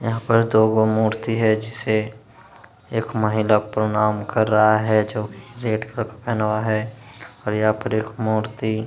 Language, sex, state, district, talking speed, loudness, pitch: Hindi, male, Uttar Pradesh, Jalaun, 170 wpm, -21 LUFS, 110 Hz